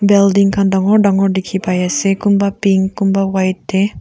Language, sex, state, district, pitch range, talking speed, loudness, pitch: Nagamese, female, Nagaland, Kohima, 190-200 Hz, 180 wpm, -14 LUFS, 195 Hz